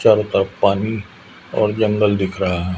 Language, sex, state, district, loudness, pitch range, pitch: Hindi, female, Madhya Pradesh, Umaria, -18 LUFS, 95-105 Hz, 100 Hz